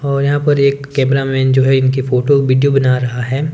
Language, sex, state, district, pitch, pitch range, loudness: Hindi, male, Himachal Pradesh, Shimla, 135 Hz, 130-140 Hz, -13 LUFS